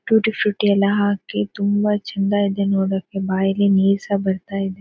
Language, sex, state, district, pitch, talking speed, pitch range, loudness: Kannada, female, Karnataka, Dakshina Kannada, 200 Hz, 150 wpm, 195-205 Hz, -19 LUFS